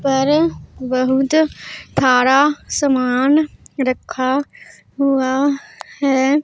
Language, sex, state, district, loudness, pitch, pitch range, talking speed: Hindi, female, Punjab, Pathankot, -17 LUFS, 270 Hz, 260-285 Hz, 65 wpm